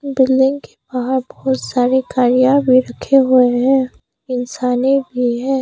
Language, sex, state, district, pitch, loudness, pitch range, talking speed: Hindi, female, Arunachal Pradesh, Papum Pare, 260 Hz, -15 LUFS, 250-265 Hz, 140 wpm